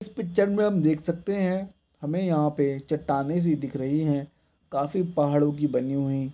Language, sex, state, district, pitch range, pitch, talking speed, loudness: Hindi, male, Bihar, Begusarai, 140-185 Hz, 150 Hz, 190 wpm, -26 LUFS